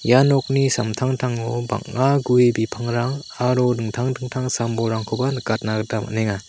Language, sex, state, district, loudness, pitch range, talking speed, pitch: Garo, male, Meghalaya, South Garo Hills, -21 LUFS, 110-130 Hz, 120 wpm, 120 Hz